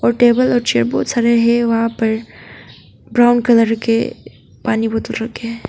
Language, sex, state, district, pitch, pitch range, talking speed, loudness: Hindi, female, Arunachal Pradesh, Papum Pare, 230 Hz, 225-240 Hz, 160 wpm, -15 LUFS